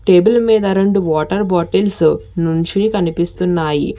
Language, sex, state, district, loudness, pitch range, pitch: Telugu, female, Telangana, Hyderabad, -15 LUFS, 165-200 Hz, 180 Hz